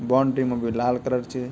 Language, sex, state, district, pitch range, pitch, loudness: Garhwali, male, Uttarakhand, Tehri Garhwal, 125-130 Hz, 125 Hz, -24 LUFS